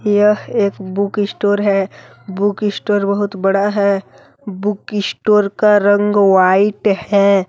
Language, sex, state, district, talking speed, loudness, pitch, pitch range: Hindi, male, Jharkhand, Deoghar, 130 wpm, -15 LUFS, 205 Hz, 200-205 Hz